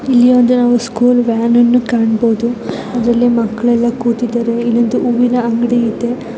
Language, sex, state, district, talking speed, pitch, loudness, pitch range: Kannada, female, Karnataka, Belgaum, 130 wpm, 240 Hz, -13 LUFS, 235-245 Hz